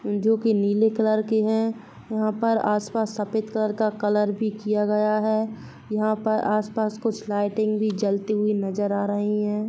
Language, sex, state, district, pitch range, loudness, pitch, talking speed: Hindi, female, Uttar Pradesh, Jalaun, 210-220 Hz, -24 LUFS, 215 Hz, 180 wpm